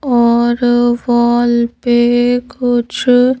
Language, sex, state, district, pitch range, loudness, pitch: Hindi, female, Madhya Pradesh, Bhopal, 240-245 Hz, -13 LUFS, 240 Hz